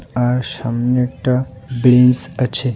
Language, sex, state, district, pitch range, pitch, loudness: Bengali, male, West Bengal, Alipurduar, 125-130 Hz, 125 Hz, -16 LUFS